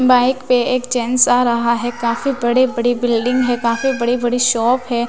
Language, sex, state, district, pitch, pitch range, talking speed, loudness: Hindi, female, Bihar, West Champaran, 245 Hz, 240-250 Hz, 200 wpm, -16 LUFS